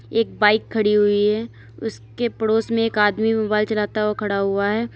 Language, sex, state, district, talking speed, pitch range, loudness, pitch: Hindi, female, Uttar Pradesh, Lalitpur, 180 wpm, 205-220 Hz, -20 LUFS, 210 Hz